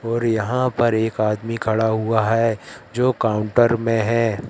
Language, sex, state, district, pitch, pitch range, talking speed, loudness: Hindi, male, Madhya Pradesh, Katni, 115 Hz, 110-115 Hz, 160 wpm, -20 LUFS